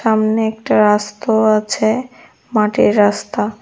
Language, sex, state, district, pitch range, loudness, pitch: Bengali, female, Tripura, West Tripura, 210-225 Hz, -15 LUFS, 215 Hz